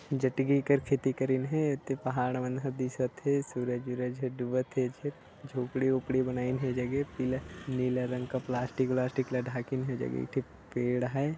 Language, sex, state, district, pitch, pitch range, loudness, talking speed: Chhattisgarhi, male, Chhattisgarh, Sarguja, 130 Hz, 125-135 Hz, -32 LUFS, 185 wpm